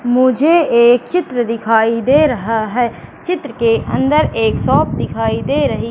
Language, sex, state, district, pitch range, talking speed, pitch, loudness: Hindi, female, Madhya Pradesh, Katni, 230-295 Hz, 150 wpm, 245 Hz, -14 LUFS